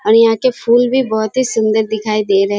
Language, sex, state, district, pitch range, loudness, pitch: Hindi, female, Bihar, Kishanganj, 215-245 Hz, -14 LUFS, 220 Hz